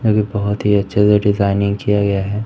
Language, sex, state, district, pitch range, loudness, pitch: Hindi, male, Madhya Pradesh, Umaria, 100-105 Hz, -16 LUFS, 100 Hz